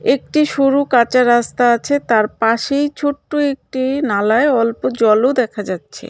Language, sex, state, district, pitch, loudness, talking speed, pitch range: Bengali, female, West Bengal, Cooch Behar, 255 Hz, -16 LUFS, 145 wpm, 230-285 Hz